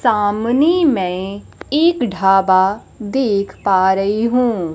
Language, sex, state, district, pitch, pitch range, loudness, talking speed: Hindi, female, Bihar, Kaimur, 205 Hz, 190-250 Hz, -16 LUFS, 100 wpm